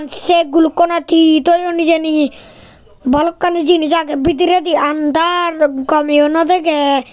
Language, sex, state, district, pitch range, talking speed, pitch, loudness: Chakma, male, Tripura, Unakoti, 300-345 Hz, 120 wpm, 325 Hz, -13 LUFS